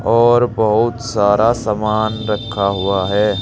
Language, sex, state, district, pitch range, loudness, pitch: Hindi, male, Uttar Pradesh, Saharanpur, 100-115 Hz, -16 LUFS, 110 Hz